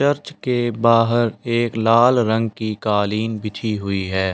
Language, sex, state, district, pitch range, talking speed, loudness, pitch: Hindi, male, Delhi, New Delhi, 105-120 Hz, 150 wpm, -19 LUFS, 115 Hz